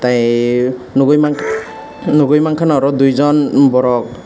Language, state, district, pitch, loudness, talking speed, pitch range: Kokborok, Tripura, West Tripura, 135 Hz, -13 LUFS, 100 wpm, 125-150 Hz